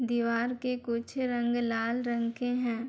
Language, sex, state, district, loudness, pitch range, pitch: Hindi, female, Bihar, Bhagalpur, -31 LUFS, 235-245 Hz, 240 Hz